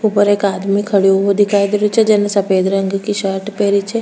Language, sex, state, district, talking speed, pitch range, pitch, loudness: Rajasthani, female, Rajasthan, Churu, 225 wpm, 195-205 Hz, 200 Hz, -14 LUFS